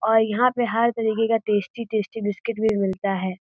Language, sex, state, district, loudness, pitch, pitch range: Hindi, female, Uttar Pradesh, Gorakhpur, -23 LUFS, 220 Hz, 205-230 Hz